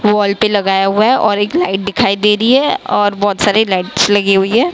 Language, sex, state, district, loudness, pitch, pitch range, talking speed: Hindi, female, Maharashtra, Mumbai Suburban, -12 LUFS, 205 Hz, 195-210 Hz, 240 wpm